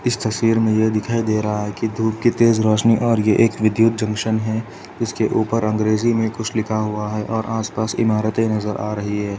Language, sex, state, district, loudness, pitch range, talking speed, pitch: Hindi, male, Uttar Pradesh, Etah, -19 LUFS, 110-115 Hz, 210 wpm, 110 Hz